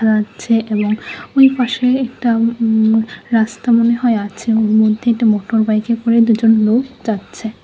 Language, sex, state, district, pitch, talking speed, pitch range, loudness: Bengali, female, Tripura, West Tripura, 225 Hz, 140 wpm, 220-235 Hz, -15 LUFS